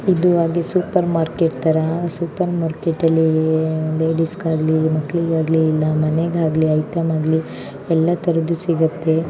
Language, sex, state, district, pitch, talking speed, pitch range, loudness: Kannada, female, Karnataka, Mysore, 160 Hz, 105 wpm, 160-170 Hz, -18 LUFS